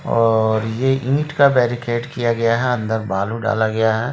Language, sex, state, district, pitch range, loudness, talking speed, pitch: Hindi, male, Bihar, Sitamarhi, 110-125 Hz, -18 LUFS, 190 wpm, 115 Hz